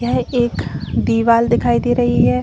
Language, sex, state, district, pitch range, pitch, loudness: Hindi, female, Chhattisgarh, Raigarh, 230-245 Hz, 240 Hz, -16 LUFS